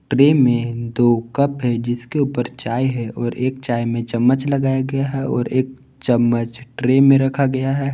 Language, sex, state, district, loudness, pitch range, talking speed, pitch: Hindi, male, Jharkhand, Palamu, -18 LUFS, 120-135 Hz, 190 wpm, 130 Hz